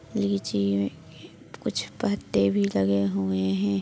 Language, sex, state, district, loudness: Hindi, female, Maharashtra, Dhule, -26 LUFS